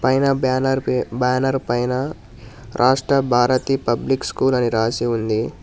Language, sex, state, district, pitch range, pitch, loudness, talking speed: Telugu, male, Telangana, Hyderabad, 120-135 Hz, 125 Hz, -19 LUFS, 130 wpm